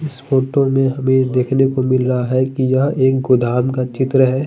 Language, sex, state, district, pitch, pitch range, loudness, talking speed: Hindi, male, Bihar, Patna, 130 Hz, 130-135 Hz, -16 LUFS, 215 wpm